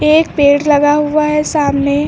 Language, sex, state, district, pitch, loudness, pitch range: Hindi, female, Uttar Pradesh, Lucknow, 295 Hz, -12 LUFS, 285-300 Hz